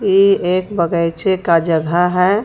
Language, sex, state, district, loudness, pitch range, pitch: Hindi, female, Jharkhand, Ranchi, -15 LUFS, 170-195 Hz, 180 Hz